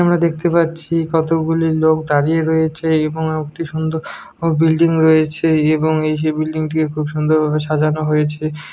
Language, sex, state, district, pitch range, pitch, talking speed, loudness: Bengali, male, West Bengal, Malda, 155-160 Hz, 160 Hz, 150 wpm, -16 LUFS